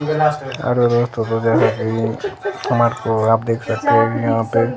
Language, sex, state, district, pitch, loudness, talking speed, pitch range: Hindi, female, Himachal Pradesh, Shimla, 115 Hz, -18 LUFS, 75 wpm, 115-125 Hz